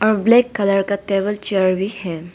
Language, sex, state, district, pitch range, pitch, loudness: Hindi, female, Arunachal Pradesh, Papum Pare, 190-210 Hz, 200 Hz, -18 LUFS